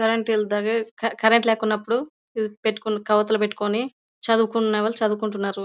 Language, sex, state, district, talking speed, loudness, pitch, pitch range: Telugu, female, Karnataka, Bellary, 125 wpm, -22 LUFS, 220 Hz, 210-225 Hz